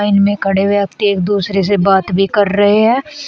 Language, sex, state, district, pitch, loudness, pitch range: Hindi, female, Uttar Pradesh, Shamli, 200 Hz, -13 LUFS, 195-205 Hz